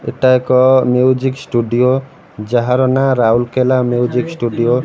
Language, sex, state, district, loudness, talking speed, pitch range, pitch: Odia, male, Odisha, Malkangiri, -14 LUFS, 125 wpm, 120-130 Hz, 125 Hz